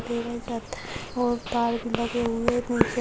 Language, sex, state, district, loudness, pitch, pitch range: Hindi, female, Uttar Pradesh, Hamirpur, -27 LUFS, 235 Hz, 235-245 Hz